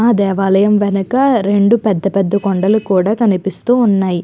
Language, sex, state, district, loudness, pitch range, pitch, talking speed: Telugu, female, Andhra Pradesh, Chittoor, -13 LUFS, 195-220 Hz, 200 Hz, 140 wpm